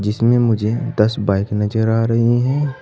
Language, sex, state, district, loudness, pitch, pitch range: Hindi, male, Uttar Pradesh, Saharanpur, -17 LUFS, 115 Hz, 105-120 Hz